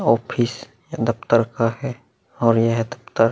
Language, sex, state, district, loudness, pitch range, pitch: Hindi, male, Uttar Pradesh, Muzaffarnagar, -21 LUFS, 115-120 Hz, 115 Hz